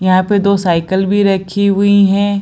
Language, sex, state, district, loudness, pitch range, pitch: Hindi, female, Bihar, Lakhisarai, -12 LUFS, 190-200 Hz, 200 Hz